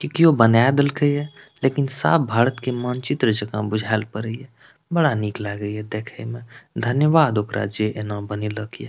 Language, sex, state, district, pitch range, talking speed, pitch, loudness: Maithili, male, Bihar, Madhepura, 105-140 Hz, 175 wpm, 115 Hz, -21 LUFS